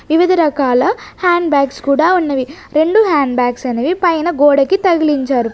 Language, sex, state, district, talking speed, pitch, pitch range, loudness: Telugu, female, Andhra Pradesh, Sri Satya Sai, 140 wpm, 295 Hz, 270-345 Hz, -13 LUFS